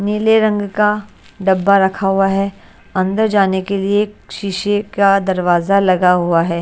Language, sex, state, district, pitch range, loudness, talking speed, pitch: Hindi, female, Haryana, Charkhi Dadri, 190-205 Hz, -15 LUFS, 165 wpm, 195 Hz